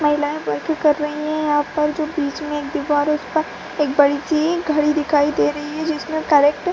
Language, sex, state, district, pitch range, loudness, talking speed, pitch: Hindi, female, Bihar, Purnia, 290-310 Hz, -19 LUFS, 215 wpm, 300 Hz